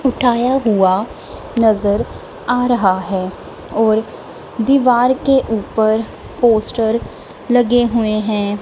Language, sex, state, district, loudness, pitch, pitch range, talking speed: Hindi, female, Punjab, Kapurthala, -16 LUFS, 225 Hz, 215-245 Hz, 95 wpm